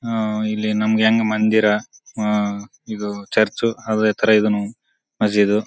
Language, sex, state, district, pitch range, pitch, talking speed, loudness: Kannada, male, Karnataka, Bijapur, 105-110 Hz, 110 Hz, 125 wpm, -19 LUFS